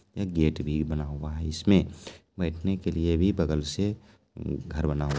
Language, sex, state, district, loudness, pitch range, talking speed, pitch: Maithili, male, Bihar, Supaul, -28 LUFS, 75-95 Hz, 195 wpm, 80 Hz